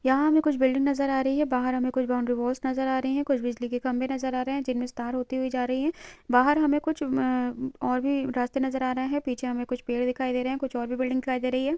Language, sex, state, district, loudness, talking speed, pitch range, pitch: Hindi, female, Uttarakhand, Tehri Garhwal, -27 LUFS, 295 wpm, 250-275 Hz, 260 Hz